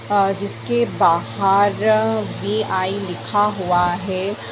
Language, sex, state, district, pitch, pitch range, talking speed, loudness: Hindi, female, Bihar, Begusarai, 200 Hz, 185-210 Hz, 95 wpm, -19 LUFS